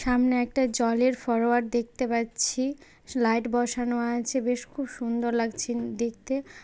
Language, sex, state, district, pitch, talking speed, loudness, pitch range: Bengali, female, West Bengal, Malda, 240 Hz, 125 wpm, -27 LUFS, 235-255 Hz